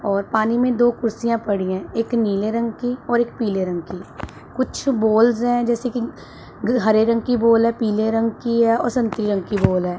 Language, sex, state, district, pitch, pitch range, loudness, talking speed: Hindi, female, Punjab, Pathankot, 230 Hz, 205-240 Hz, -20 LUFS, 220 wpm